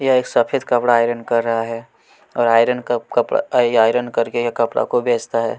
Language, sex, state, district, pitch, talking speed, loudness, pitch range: Hindi, male, Chhattisgarh, Kabirdham, 120 Hz, 225 wpm, -18 LUFS, 115-120 Hz